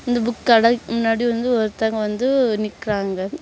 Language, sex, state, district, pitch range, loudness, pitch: Tamil, female, Tamil Nadu, Kanyakumari, 215-240 Hz, -19 LUFS, 230 Hz